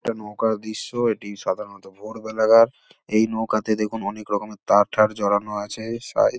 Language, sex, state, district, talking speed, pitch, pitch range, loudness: Bengali, male, West Bengal, Dakshin Dinajpur, 160 wpm, 110 Hz, 105-110 Hz, -22 LUFS